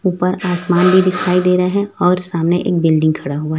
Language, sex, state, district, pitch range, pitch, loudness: Hindi, female, Chhattisgarh, Raipur, 165-185 Hz, 180 Hz, -15 LUFS